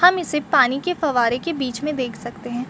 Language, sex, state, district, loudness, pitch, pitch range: Hindi, female, Bihar, Gopalganj, -21 LUFS, 265 Hz, 240-300 Hz